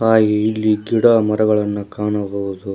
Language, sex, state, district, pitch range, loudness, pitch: Kannada, male, Karnataka, Koppal, 105-110 Hz, -17 LUFS, 105 Hz